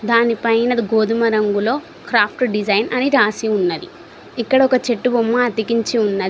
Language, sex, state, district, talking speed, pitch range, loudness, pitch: Telugu, female, Telangana, Mahabubabad, 145 wpm, 215-245 Hz, -17 LUFS, 230 Hz